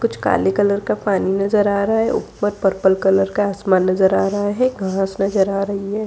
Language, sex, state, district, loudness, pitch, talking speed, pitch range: Hindi, female, Bihar, Darbhanga, -18 LUFS, 200 Hz, 225 wpm, 195-205 Hz